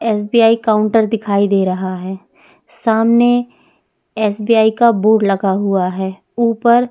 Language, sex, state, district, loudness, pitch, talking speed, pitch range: Hindi, female, Uttar Pradesh, Etah, -14 LUFS, 220 Hz, 130 wpm, 200-230 Hz